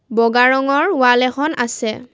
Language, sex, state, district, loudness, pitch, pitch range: Assamese, female, Assam, Kamrup Metropolitan, -15 LUFS, 250 Hz, 240-275 Hz